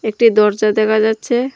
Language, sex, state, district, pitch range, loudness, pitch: Bengali, female, Tripura, Dhalai, 215-230 Hz, -14 LUFS, 220 Hz